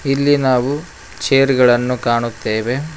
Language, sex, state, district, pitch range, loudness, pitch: Kannada, male, Karnataka, Koppal, 120-140 Hz, -16 LUFS, 130 Hz